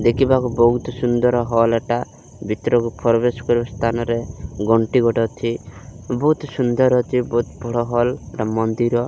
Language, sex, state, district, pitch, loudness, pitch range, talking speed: Odia, male, Odisha, Malkangiri, 120 Hz, -19 LUFS, 115-125 Hz, 130 wpm